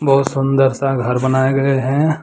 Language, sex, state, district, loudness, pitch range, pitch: Hindi, male, Jharkhand, Deoghar, -16 LUFS, 130-140 Hz, 135 Hz